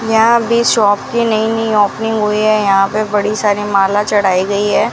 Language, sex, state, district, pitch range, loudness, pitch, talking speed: Hindi, female, Rajasthan, Bikaner, 205-225 Hz, -13 LUFS, 210 Hz, 195 wpm